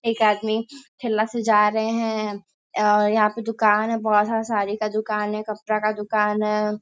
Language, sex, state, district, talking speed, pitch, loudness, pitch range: Hindi, female, Bihar, Sitamarhi, 195 wpm, 215 Hz, -22 LUFS, 210-225 Hz